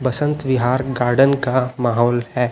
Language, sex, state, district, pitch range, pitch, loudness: Hindi, male, Chhattisgarh, Raipur, 120-135 Hz, 130 Hz, -18 LUFS